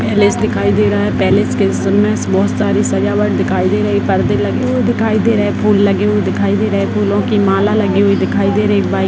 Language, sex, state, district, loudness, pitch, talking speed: Hindi, female, Bihar, Purnia, -13 LUFS, 200 Hz, 270 wpm